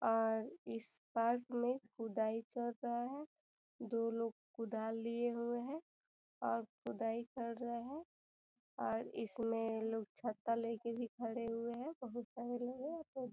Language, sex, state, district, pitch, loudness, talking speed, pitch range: Hindi, female, Bihar, Gopalganj, 235 Hz, -42 LUFS, 140 wpm, 225-245 Hz